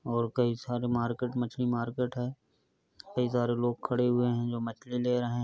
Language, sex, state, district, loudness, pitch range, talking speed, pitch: Hindi, male, Uttar Pradesh, Varanasi, -31 LUFS, 120-125 Hz, 200 wpm, 120 Hz